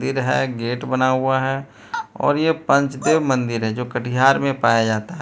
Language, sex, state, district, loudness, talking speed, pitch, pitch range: Hindi, male, Bihar, Katihar, -20 LUFS, 195 wpm, 130 Hz, 120-140 Hz